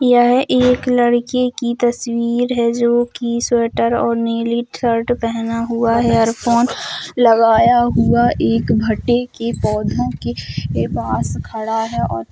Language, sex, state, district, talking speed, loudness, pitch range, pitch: Hindi, female, Uttar Pradesh, Jalaun, 135 wpm, -16 LUFS, 225-240 Hz, 235 Hz